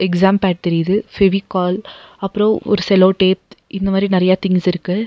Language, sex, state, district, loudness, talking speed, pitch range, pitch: Tamil, female, Tamil Nadu, Nilgiris, -16 LUFS, 140 wpm, 185-195 Hz, 190 Hz